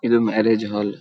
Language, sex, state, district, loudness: Kannada, male, Karnataka, Dharwad, -20 LUFS